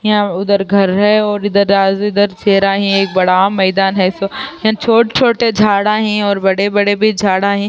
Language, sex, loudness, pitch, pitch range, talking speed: Urdu, female, -13 LUFS, 200 Hz, 195-210 Hz, 165 wpm